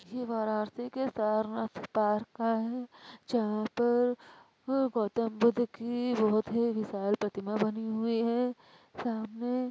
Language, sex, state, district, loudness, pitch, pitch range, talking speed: Hindi, female, Uttar Pradesh, Varanasi, -31 LUFS, 230 Hz, 215-245 Hz, 125 wpm